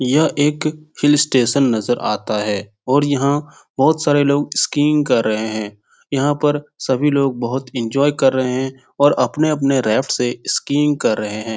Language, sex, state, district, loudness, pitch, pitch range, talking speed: Hindi, male, Bihar, Jahanabad, -17 LUFS, 135 Hz, 120-145 Hz, 180 wpm